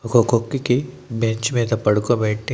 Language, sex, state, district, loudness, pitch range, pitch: Telugu, male, Andhra Pradesh, Annamaya, -20 LUFS, 110-125 Hz, 115 Hz